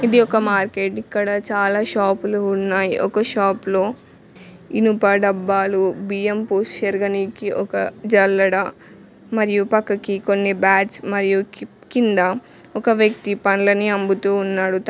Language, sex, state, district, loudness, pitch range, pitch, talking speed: Telugu, female, Telangana, Mahabubabad, -19 LUFS, 195-210 Hz, 200 Hz, 120 wpm